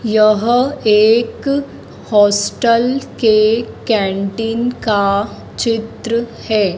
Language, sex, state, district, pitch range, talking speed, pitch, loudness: Hindi, female, Madhya Pradesh, Dhar, 210-235 Hz, 70 wpm, 225 Hz, -15 LUFS